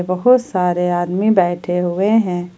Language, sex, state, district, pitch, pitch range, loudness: Hindi, female, Jharkhand, Ranchi, 180 Hz, 175-195 Hz, -16 LUFS